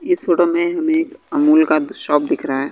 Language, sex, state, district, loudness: Hindi, male, Bihar, West Champaran, -17 LUFS